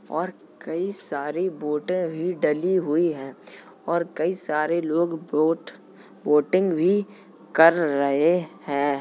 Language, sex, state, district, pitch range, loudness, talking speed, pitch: Hindi, male, Uttar Pradesh, Jalaun, 150-180 Hz, -23 LUFS, 120 wpm, 165 Hz